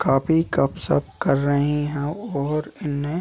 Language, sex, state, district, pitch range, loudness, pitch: Hindi, male, Chhattisgarh, Raigarh, 145-155 Hz, -22 LUFS, 145 Hz